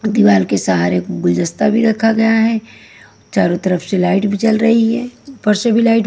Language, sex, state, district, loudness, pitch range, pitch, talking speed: Hindi, female, Haryana, Jhajjar, -14 LUFS, 175-225 Hz, 220 Hz, 210 wpm